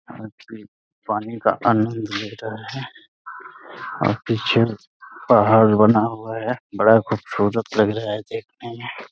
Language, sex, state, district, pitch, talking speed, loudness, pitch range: Hindi, male, Uttar Pradesh, Deoria, 110 Hz, 125 wpm, -20 LUFS, 105-115 Hz